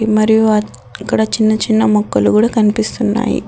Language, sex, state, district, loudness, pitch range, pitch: Telugu, female, Telangana, Adilabad, -14 LUFS, 215-220 Hz, 220 Hz